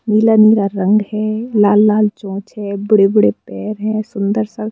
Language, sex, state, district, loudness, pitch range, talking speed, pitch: Hindi, female, Madhya Pradesh, Bhopal, -14 LUFS, 200-215 Hz, 180 wpm, 210 Hz